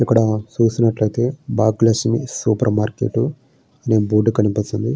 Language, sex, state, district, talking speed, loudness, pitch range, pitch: Telugu, male, Andhra Pradesh, Srikakulam, 95 wpm, -18 LUFS, 110-125 Hz, 115 Hz